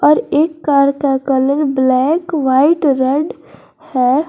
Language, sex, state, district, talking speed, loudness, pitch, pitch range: Hindi, female, Jharkhand, Garhwa, 110 wpm, -14 LUFS, 280 Hz, 265-310 Hz